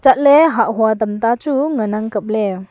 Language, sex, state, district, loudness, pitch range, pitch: Wancho, female, Arunachal Pradesh, Longding, -15 LUFS, 215-275 Hz, 225 Hz